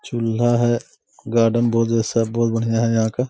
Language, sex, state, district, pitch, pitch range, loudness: Hindi, male, Jharkhand, Sahebganj, 115 Hz, 115-120 Hz, -19 LUFS